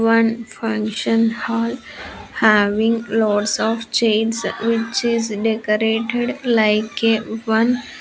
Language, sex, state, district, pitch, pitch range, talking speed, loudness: English, female, Andhra Pradesh, Sri Satya Sai, 225 Hz, 220-230 Hz, 105 wpm, -18 LUFS